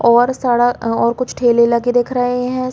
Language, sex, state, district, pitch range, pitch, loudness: Hindi, female, Chhattisgarh, Balrampur, 235-250 Hz, 245 Hz, -15 LUFS